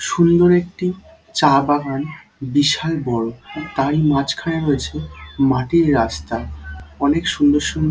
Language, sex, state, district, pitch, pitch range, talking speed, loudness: Bengali, male, West Bengal, Dakshin Dinajpur, 145 Hz, 120-160 Hz, 105 wpm, -18 LUFS